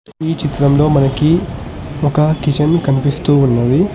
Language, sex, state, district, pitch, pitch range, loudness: Telugu, male, Telangana, Hyderabad, 145 Hz, 140-160 Hz, -14 LUFS